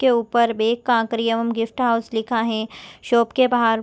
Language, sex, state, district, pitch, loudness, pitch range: Hindi, female, Chhattisgarh, Korba, 230 Hz, -20 LUFS, 225-240 Hz